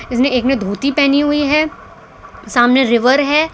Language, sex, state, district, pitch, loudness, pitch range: Hindi, female, Gujarat, Valsad, 270 Hz, -14 LUFS, 245-290 Hz